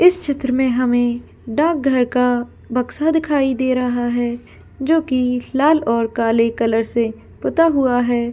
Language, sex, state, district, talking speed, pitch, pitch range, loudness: Hindi, female, Jharkhand, Jamtara, 150 wpm, 250 Hz, 240-280 Hz, -18 LUFS